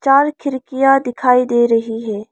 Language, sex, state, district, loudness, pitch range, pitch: Hindi, female, Arunachal Pradesh, Lower Dibang Valley, -15 LUFS, 230-270 Hz, 250 Hz